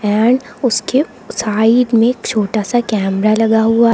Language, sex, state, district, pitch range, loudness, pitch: Hindi, female, Uttar Pradesh, Lucknow, 215-240 Hz, -14 LUFS, 225 Hz